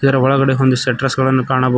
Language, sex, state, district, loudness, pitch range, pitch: Kannada, male, Karnataka, Koppal, -15 LUFS, 130-135 Hz, 130 Hz